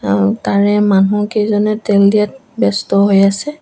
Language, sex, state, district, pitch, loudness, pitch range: Assamese, female, Assam, Sonitpur, 205 Hz, -13 LUFS, 195-210 Hz